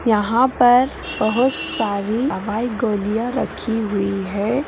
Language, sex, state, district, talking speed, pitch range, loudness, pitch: Magahi, female, Bihar, Gaya, 115 wpm, 210-245 Hz, -19 LUFS, 225 Hz